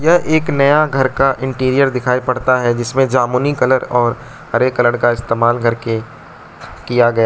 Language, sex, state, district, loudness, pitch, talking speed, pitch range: Hindi, male, Arunachal Pradesh, Lower Dibang Valley, -15 LUFS, 130 Hz, 175 wpm, 120-135 Hz